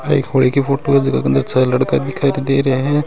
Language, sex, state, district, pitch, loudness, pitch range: Hindi, male, Rajasthan, Nagaur, 135 Hz, -15 LUFS, 130-140 Hz